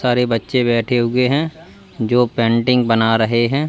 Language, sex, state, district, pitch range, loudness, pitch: Hindi, male, Uttar Pradesh, Lalitpur, 115-125 Hz, -16 LUFS, 120 Hz